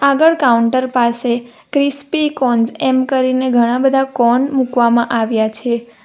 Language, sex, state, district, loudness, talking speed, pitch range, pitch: Gujarati, female, Gujarat, Valsad, -15 LUFS, 130 wpm, 235-270 Hz, 250 Hz